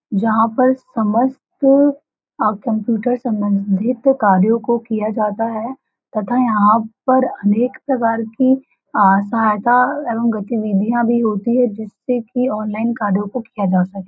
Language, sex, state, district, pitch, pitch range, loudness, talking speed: Hindi, female, Uttar Pradesh, Varanasi, 230 Hz, 215-250 Hz, -17 LUFS, 135 wpm